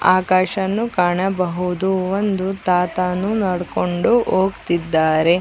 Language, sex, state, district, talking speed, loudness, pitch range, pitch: Kannada, female, Karnataka, Chamarajanagar, 80 wpm, -19 LUFS, 180-195 Hz, 185 Hz